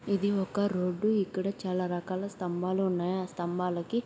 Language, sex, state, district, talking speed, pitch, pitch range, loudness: Telugu, female, Andhra Pradesh, Srikakulam, 165 wpm, 185 Hz, 180-200 Hz, -31 LUFS